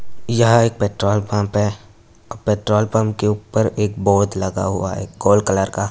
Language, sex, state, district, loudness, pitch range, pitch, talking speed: Hindi, male, Uttar Pradesh, Etah, -18 LUFS, 100-110 Hz, 105 Hz, 140 wpm